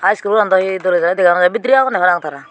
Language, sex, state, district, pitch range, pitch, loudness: Chakma, female, Tripura, Unakoti, 175-210 Hz, 185 Hz, -14 LUFS